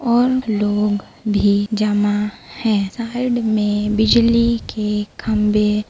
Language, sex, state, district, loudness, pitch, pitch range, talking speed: Hindi, female, Bihar, Begusarai, -18 LUFS, 210 Hz, 210-235 Hz, 110 wpm